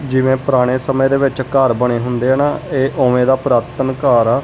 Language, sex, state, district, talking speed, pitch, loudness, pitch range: Punjabi, male, Punjab, Kapurthala, 215 wpm, 130 Hz, -15 LUFS, 125-135 Hz